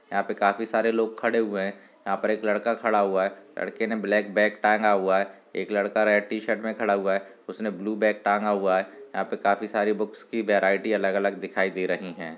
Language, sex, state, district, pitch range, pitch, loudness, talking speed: Hindi, male, Chhattisgarh, Korba, 95-110 Hz, 105 Hz, -25 LUFS, 230 wpm